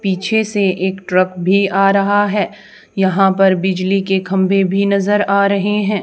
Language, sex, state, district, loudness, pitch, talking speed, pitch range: Hindi, female, Haryana, Charkhi Dadri, -15 LUFS, 195 Hz, 180 wpm, 190-200 Hz